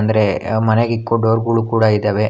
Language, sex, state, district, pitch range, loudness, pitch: Kannada, male, Karnataka, Bangalore, 105-115 Hz, -16 LUFS, 110 Hz